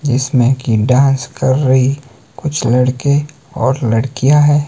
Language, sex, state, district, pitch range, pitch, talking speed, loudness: Hindi, male, Himachal Pradesh, Shimla, 125-140 Hz, 130 Hz, 130 wpm, -14 LUFS